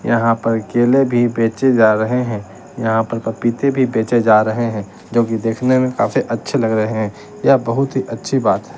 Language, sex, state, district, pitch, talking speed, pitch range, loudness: Hindi, male, Bihar, West Champaran, 115 Hz, 200 wpm, 110-125 Hz, -16 LUFS